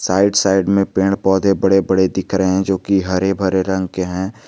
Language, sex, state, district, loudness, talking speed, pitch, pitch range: Hindi, male, Jharkhand, Garhwa, -16 LUFS, 230 wpm, 95 Hz, 95-100 Hz